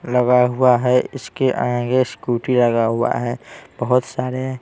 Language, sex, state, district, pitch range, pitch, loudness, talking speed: Hindi, male, Bihar, Patna, 120-130 Hz, 125 Hz, -18 LUFS, 145 wpm